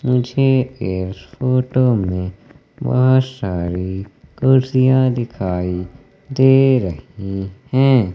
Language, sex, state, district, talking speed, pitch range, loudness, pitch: Hindi, male, Madhya Pradesh, Katni, 80 wpm, 95-130 Hz, -17 LUFS, 125 Hz